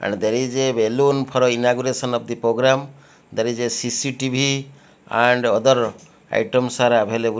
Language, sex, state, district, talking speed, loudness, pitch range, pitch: English, male, Odisha, Malkangiri, 160 wpm, -19 LUFS, 115-130 Hz, 125 Hz